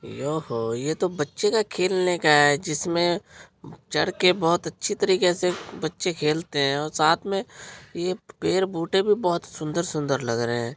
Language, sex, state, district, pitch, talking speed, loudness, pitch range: Hindi, male, Bihar, Araria, 170 Hz, 165 wpm, -24 LUFS, 150-185 Hz